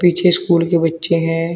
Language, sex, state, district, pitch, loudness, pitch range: Hindi, male, Uttar Pradesh, Shamli, 170 Hz, -15 LUFS, 165-175 Hz